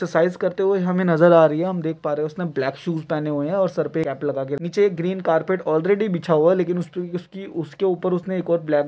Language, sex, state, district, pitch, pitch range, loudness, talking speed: Hindi, male, West Bengal, Kolkata, 170 Hz, 155-185 Hz, -21 LUFS, 275 wpm